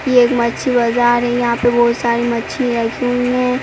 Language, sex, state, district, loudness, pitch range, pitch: Hindi, female, Uttar Pradesh, Jyotiba Phule Nagar, -15 LUFS, 235-245 Hz, 240 Hz